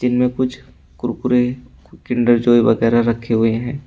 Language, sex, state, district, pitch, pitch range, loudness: Hindi, male, Uttar Pradesh, Shamli, 120 Hz, 120-125 Hz, -17 LUFS